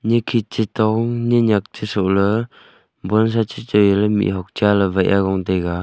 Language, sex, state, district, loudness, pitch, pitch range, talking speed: Wancho, male, Arunachal Pradesh, Longding, -18 LUFS, 105 Hz, 100-110 Hz, 175 wpm